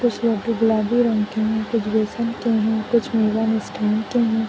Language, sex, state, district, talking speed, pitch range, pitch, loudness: Hindi, female, Bihar, Sitamarhi, 185 wpm, 220-230 Hz, 220 Hz, -20 LUFS